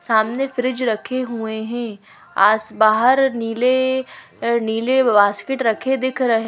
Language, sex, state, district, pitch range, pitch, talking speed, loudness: Hindi, female, Madhya Pradesh, Bhopal, 220-260 Hz, 235 Hz, 120 wpm, -18 LUFS